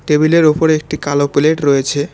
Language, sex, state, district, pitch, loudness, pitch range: Bengali, male, West Bengal, Cooch Behar, 150 Hz, -13 LUFS, 145-155 Hz